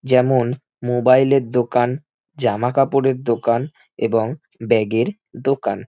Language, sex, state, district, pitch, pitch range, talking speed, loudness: Bengali, male, West Bengal, Jhargram, 125 Hz, 120-135 Hz, 110 wpm, -19 LUFS